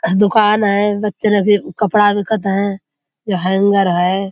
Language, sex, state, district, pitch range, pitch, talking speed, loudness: Hindi, female, Uttar Pradesh, Budaun, 190-210 Hz, 200 Hz, 150 wpm, -15 LUFS